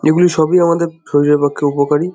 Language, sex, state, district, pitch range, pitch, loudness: Bengali, male, West Bengal, Jhargram, 145-170 Hz, 155 Hz, -14 LUFS